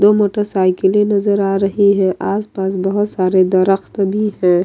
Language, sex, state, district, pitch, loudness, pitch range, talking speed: Hindi, female, Bihar, Kishanganj, 195 Hz, -15 LUFS, 190-205 Hz, 170 wpm